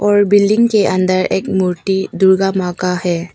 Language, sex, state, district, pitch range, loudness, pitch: Hindi, female, Arunachal Pradesh, Papum Pare, 185-205 Hz, -14 LUFS, 190 Hz